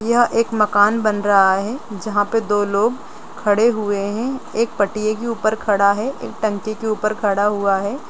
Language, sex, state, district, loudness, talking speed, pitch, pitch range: Hindi, female, Bihar, Gopalganj, -18 LUFS, 190 wpm, 215 Hz, 205-230 Hz